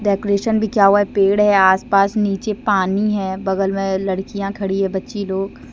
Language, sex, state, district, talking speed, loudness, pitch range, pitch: Hindi, female, Jharkhand, Deoghar, 190 wpm, -17 LUFS, 195-205 Hz, 195 Hz